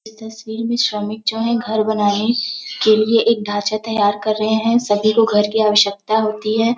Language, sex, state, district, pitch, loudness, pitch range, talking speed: Hindi, female, Uttar Pradesh, Varanasi, 220 Hz, -17 LUFS, 210-225 Hz, 205 wpm